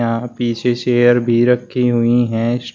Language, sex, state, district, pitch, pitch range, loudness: Hindi, male, Uttar Pradesh, Shamli, 120 Hz, 120-125 Hz, -15 LUFS